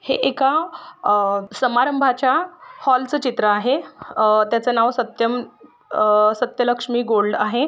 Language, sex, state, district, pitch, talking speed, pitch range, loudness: Marathi, female, Maharashtra, Solapur, 245 Hz, 115 wpm, 215-265 Hz, -19 LUFS